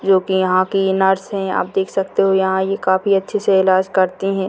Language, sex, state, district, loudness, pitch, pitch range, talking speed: Hindi, female, Bihar, Sitamarhi, -17 LUFS, 190 Hz, 190-195 Hz, 280 wpm